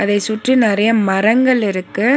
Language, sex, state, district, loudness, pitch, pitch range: Tamil, female, Tamil Nadu, Nilgiris, -15 LUFS, 220 Hz, 205-240 Hz